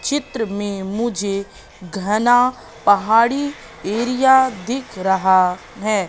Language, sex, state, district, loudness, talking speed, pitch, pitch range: Hindi, female, Madhya Pradesh, Katni, -18 LUFS, 90 wpm, 215 Hz, 195-245 Hz